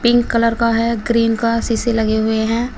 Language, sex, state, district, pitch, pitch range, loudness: Hindi, female, Uttar Pradesh, Shamli, 230 Hz, 225-235 Hz, -16 LUFS